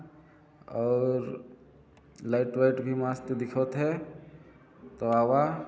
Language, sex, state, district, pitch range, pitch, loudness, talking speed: Chhattisgarhi, male, Chhattisgarh, Jashpur, 120-150 Hz, 130 Hz, -29 LUFS, 95 wpm